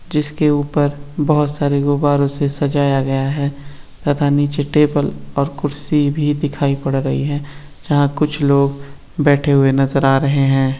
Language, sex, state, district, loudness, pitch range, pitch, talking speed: Hindi, male, Bihar, East Champaran, -17 LUFS, 140-145 Hz, 145 Hz, 155 wpm